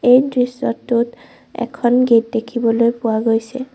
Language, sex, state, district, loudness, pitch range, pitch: Assamese, female, Assam, Sonitpur, -17 LUFS, 230-250 Hz, 240 Hz